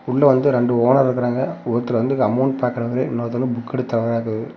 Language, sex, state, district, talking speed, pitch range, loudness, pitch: Tamil, male, Tamil Nadu, Namakkal, 185 wpm, 120-130 Hz, -19 LUFS, 125 Hz